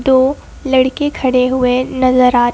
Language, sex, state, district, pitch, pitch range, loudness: Hindi, female, Madhya Pradesh, Bhopal, 260 Hz, 250-265 Hz, -13 LUFS